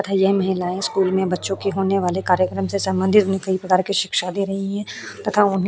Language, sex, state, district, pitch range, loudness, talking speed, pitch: Hindi, female, Uttar Pradesh, Hamirpur, 190-195 Hz, -20 LUFS, 240 wpm, 190 Hz